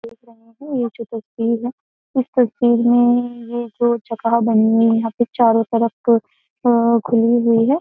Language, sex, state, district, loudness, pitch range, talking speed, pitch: Hindi, female, Uttar Pradesh, Jyotiba Phule Nagar, -17 LUFS, 230-240 Hz, 185 wpm, 235 Hz